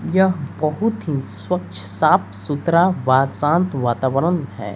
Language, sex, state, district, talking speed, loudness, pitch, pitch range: Hindi, female, Bihar, West Champaran, 125 wpm, -19 LUFS, 150 Hz, 130-175 Hz